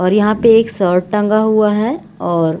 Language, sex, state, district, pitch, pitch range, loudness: Hindi, female, Bihar, Gaya, 210 Hz, 180-220 Hz, -14 LUFS